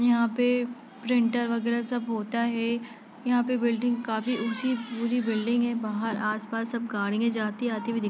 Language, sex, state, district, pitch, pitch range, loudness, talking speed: Hindi, female, Bihar, Sitamarhi, 235 Hz, 225-240 Hz, -28 LUFS, 165 wpm